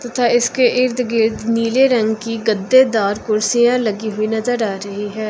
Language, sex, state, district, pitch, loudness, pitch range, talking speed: Hindi, female, Uttar Pradesh, Lucknow, 230 Hz, -16 LUFS, 215-245 Hz, 170 wpm